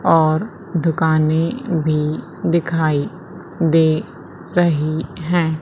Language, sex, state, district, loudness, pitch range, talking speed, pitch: Hindi, female, Madhya Pradesh, Umaria, -18 LUFS, 155-170 Hz, 75 wpm, 160 Hz